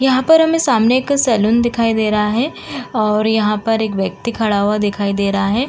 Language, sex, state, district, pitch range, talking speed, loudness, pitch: Hindi, female, Uttar Pradesh, Jalaun, 210-250 Hz, 220 wpm, -15 LUFS, 220 Hz